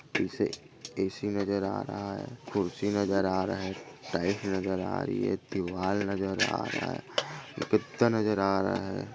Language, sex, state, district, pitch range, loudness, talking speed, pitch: Hindi, male, Chhattisgarh, Bastar, 95-100 Hz, -31 LUFS, 175 wpm, 95 Hz